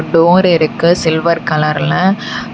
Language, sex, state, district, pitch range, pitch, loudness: Tamil, female, Tamil Nadu, Namakkal, 165-185 Hz, 170 Hz, -12 LUFS